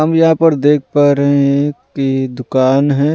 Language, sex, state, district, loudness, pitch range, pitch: Hindi, male, Punjab, Pathankot, -13 LUFS, 135-150 Hz, 145 Hz